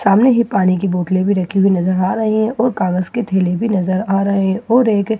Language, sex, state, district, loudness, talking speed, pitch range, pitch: Hindi, female, Bihar, Katihar, -15 LUFS, 275 wpm, 185-220 Hz, 195 Hz